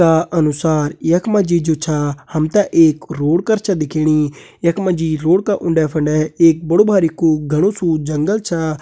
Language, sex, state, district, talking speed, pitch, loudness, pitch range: Kumaoni, male, Uttarakhand, Uttarkashi, 175 wpm, 160 Hz, -16 LUFS, 155-175 Hz